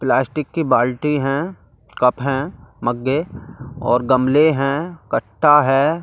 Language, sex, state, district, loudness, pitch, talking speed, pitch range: Hindi, male, Delhi, New Delhi, -18 LUFS, 135 Hz, 120 wpm, 130-150 Hz